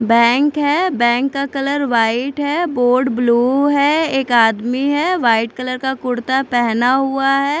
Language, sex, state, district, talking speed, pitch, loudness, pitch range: Hindi, female, Chandigarh, Chandigarh, 160 wpm, 265 Hz, -16 LUFS, 240-285 Hz